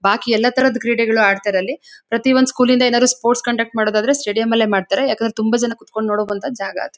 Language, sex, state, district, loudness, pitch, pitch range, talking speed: Kannada, female, Karnataka, Shimoga, -17 LUFS, 230 Hz, 215-245 Hz, 180 wpm